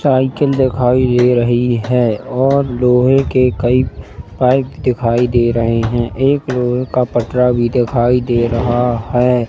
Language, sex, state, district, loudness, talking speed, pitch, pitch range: Hindi, male, Madhya Pradesh, Katni, -14 LUFS, 145 wpm, 125 Hz, 120-130 Hz